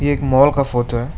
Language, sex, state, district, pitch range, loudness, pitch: Hindi, male, West Bengal, Alipurduar, 120-140 Hz, -16 LUFS, 135 Hz